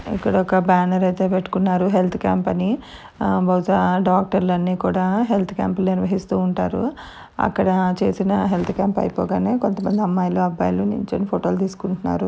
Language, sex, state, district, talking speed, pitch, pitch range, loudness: Telugu, female, Andhra Pradesh, Chittoor, 140 wpm, 185 Hz, 180-195 Hz, -20 LUFS